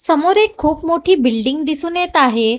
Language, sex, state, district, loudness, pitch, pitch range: Marathi, female, Maharashtra, Gondia, -15 LUFS, 315 Hz, 265-350 Hz